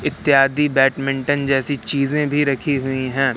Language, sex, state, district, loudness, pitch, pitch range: Hindi, male, Madhya Pradesh, Katni, -18 LUFS, 140 Hz, 135-145 Hz